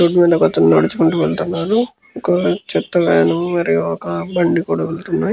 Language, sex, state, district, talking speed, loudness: Telugu, male, Andhra Pradesh, Krishna, 155 wpm, -16 LUFS